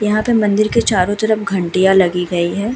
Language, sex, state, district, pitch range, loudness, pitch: Hindi, female, Uttar Pradesh, Hamirpur, 185-215 Hz, -15 LUFS, 205 Hz